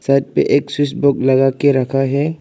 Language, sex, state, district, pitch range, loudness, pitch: Hindi, male, Arunachal Pradesh, Lower Dibang Valley, 135-145 Hz, -15 LUFS, 140 Hz